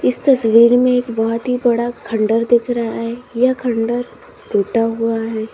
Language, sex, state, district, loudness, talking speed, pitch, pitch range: Hindi, female, Uttar Pradesh, Lalitpur, -16 LUFS, 175 wpm, 235 Hz, 225-245 Hz